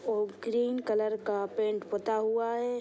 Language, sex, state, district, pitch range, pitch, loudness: Hindi, female, Bihar, Sitamarhi, 210-230 Hz, 220 Hz, -31 LUFS